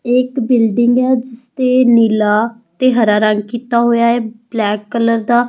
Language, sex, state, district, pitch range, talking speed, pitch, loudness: Punjabi, female, Punjab, Fazilka, 225-245 Hz, 175 wpm, 235 Hz, -14 LUFS